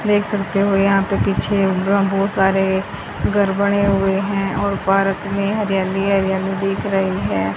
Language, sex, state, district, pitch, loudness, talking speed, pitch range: Hindi, female, Haryana, Rohtak, 195 Hz, -18 LUFS, 180 wpm, 195-200 Hz